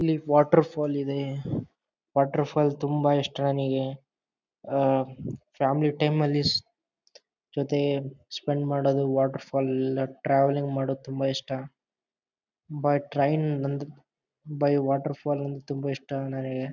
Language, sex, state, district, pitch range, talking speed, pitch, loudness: Kannada, male, Karnataka, Bellary, 135-145 Hz, 115 wpm, 140 Hz, -27 LUFS